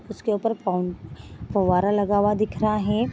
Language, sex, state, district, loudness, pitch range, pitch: Hindi, female, Bihar, Vaishali, -23 LUFS, 180-215 Hz, 205 Hz